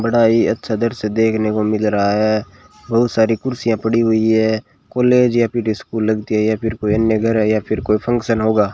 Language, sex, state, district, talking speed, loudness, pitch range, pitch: Hindi, male, Rajasthan, Bikaner, 220 wpm, -17 LUFS, 110-115 Hz, 110 Hz